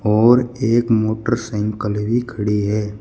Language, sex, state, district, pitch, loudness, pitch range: Hindi, male, Uttar Pradesh, Shamli, 110 Hz, -18 LUFS, 105-120 Hz